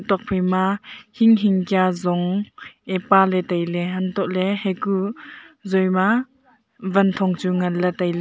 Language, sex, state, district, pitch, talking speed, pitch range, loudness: Wancho, female, Arunachal Pradesh, Longding, 190 Hz, 125 wpm, 185-205 Hz, -20 LUFS